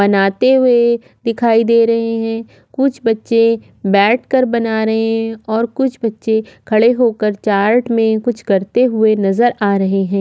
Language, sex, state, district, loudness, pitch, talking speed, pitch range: Hindi, female, Maharashtra, Aurangabad, -14 LUFS, 225 Hz, 155 wpm, 215-235 Hz